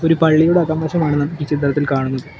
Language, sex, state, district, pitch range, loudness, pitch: Malayalam, male, Kerala, Kollam, 145-165 Hz, -16 LUFS, 155 Hz